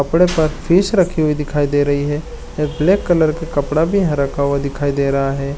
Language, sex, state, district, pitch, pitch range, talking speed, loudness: Chhattisgarhi, male, Chhattisgarh, Jashpur, 150 Hz, 140-165 Hz, 235 wpm, -17 LUFS